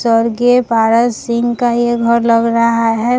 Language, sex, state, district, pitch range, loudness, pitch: Hindi, female, Bihar, Vaishali, 230-240 Hz, -13 LUFS, 235 Hz